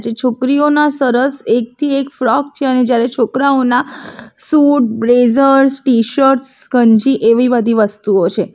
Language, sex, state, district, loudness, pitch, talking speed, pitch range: Gujarati, female, Gujarat, Valsad, -13 LUFS, 255 Hz, 125 wpm, 230-275 Hz